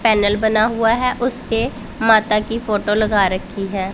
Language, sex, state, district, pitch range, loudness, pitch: Hindi, female, Punjab, Pathankot, 205-230 Hz, -17 LUFS, 220 Hz